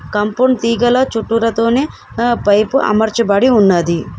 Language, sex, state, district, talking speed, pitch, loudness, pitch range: Telugu, female, Telangana, Komaram Bheem, 115 wpm, 230 Hz, -14 LUFS, 210-240 Hz